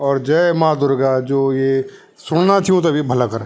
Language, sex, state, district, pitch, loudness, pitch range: Garhwali, male, Uttarakhand, Tehri Garhwal, 140 Hz, -16 LUFS, 135-160 Hz